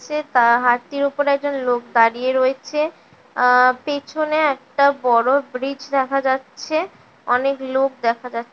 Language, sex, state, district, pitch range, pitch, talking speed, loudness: Bengali, female, West Bengal, North 24 Parganas, 250-285 Hz, 265 Hz, 135 wpm, -19 LUFS